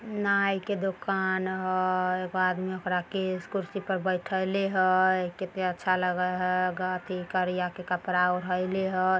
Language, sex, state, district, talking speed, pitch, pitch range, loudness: Maithili, female, Bihar, Samastipur, 145 wpm, 185 Hz, 180-190 Hz, -28 LUFS